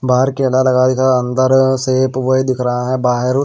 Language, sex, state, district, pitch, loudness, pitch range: Hindi, male, Maharashtra, Washim, 130 Hz, -14 LUFS, 125-130 Hz